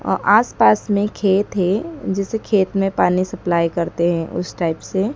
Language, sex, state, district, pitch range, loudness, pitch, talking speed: Hindi, male, Madhya Pradesh, Dhar, 175-205 Hz, -18 LUFS, 190 Hz, 165 wpm